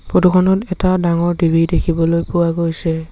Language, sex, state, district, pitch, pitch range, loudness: Assamese, male, Assam, Sonitpur, 170 Hz, 165-180 Hz, -16 LUFS